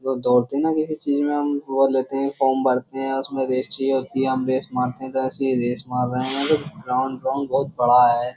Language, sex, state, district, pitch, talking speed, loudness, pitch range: Hindi, male, Uttar Pradesh, Jyotiba Phule Nagar, 130 Hz, 250 wpm, -22 LUFS, 130-140 Hz